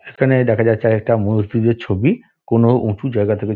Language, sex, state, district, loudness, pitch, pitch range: Bengali, male, West Bengal, Dakshin Dinajpur, -17 LUFS, 115 Hz, 110-125 Hz